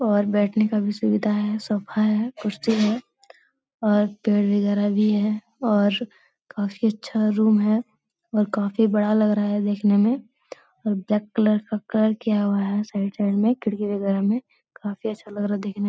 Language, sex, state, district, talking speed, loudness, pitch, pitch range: Hindi, female, Bihar, Supaul, 185 wpm, -23 LUFS, 210 Hz, 205-220 Hz